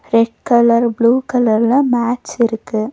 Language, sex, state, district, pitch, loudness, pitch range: Tamil, female, Tamil Nadu, Nilgiris, 235 Hz, -15 LUFS, 230-245 Hz